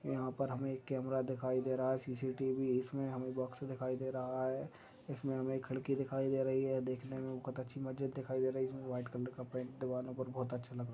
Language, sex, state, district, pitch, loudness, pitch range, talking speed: Hindi, male, Maharashtra, Aurangabad, 130 Hz, -39 LUFS, 130-135 Hz, 235 wpm